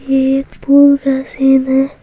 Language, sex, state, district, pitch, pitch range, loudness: Hindi, female, Bihar, Patna, 270 Hz, 265-275 Hz, -12 LUFS